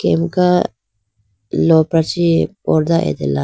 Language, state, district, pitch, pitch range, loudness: Idu Mishmi, Arunachal Pradesh, Lower Dibang Valley, 160 Hz, 105-165 Hz, -16 LUFS